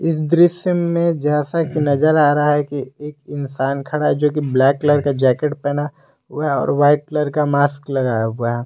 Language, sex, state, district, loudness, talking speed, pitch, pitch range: Hindi, male, Jharkhand, Garhwa, -17 LUFS, 215 wpm, 145 Hz, 140-150 Hz